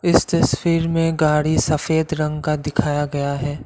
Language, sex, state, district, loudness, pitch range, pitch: Hindi, male, Assam, Kamrup Metropolitan, -19 LUFS, 145-165 Hz, 155 Hz